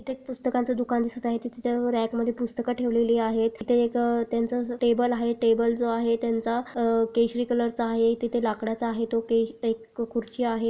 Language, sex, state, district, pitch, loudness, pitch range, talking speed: Marathi, female, Maharashtra, Sindhudurg, 235 Hz, -26 LUFS, 230-240 Hz, 195 wpm